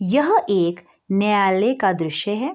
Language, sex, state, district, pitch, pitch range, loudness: Hindi, female, Bihar, Gopalganj, 200 Hz, 190-235 Hz, -19 LUFS